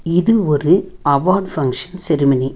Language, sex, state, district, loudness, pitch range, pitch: Tamil, female, Tamil Nadu, Nilgiris, -16 LUFS, 140-185 Hz, 155 Hz